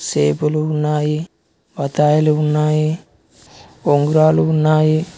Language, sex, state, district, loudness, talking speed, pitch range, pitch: Telugu, male, Telangana, Mahabubabad, -16 LUFS, 70 wpm, 150-155 Hz, 150 Hz